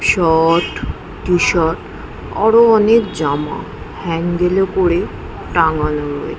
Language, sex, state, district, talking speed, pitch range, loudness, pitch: Bengali, female, West Bengal, Jhargram, 115 wpm, 160-190 Hz, -15 LUFS, 175 Hz